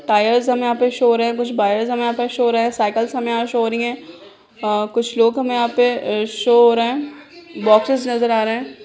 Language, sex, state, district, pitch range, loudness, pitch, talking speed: Hindi, female, Jharkhand, Sahebganj, 225-245 Hz, -17 LUFS, 235 Hz, 265 wpm